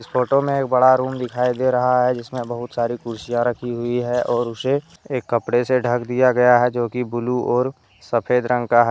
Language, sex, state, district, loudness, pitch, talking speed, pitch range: Hindi, male, Jharkhand, Deoghar, -20 LUFS, 125 Hz, 220 wpm, 120-125 Hz